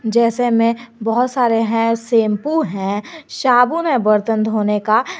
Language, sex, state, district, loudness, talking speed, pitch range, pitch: Hindi, female, Jharkhand, Garhwa, -17 LUFS, 140 wpm, 215-245 Hz, 230 Hz